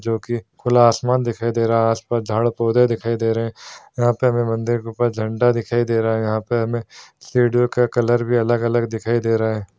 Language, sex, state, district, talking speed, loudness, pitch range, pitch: Hindi, male, Bihar, Madhepura, 235 wpm, -19 LUFS, 115-120 Hz, 115 Hz